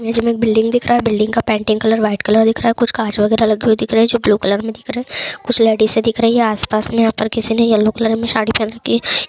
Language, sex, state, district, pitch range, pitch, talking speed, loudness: Hindi, female, Chhattisgarh, Jashpur, 215-230 Hz, 225 Hz, 325 wpm, -15 LUFS